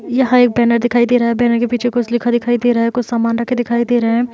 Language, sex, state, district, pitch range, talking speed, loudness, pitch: Hindi, female, Uttar Pradesh, Varanasi, 235-245 Hz, 315 wpm, -15 LUFS, 240 Hz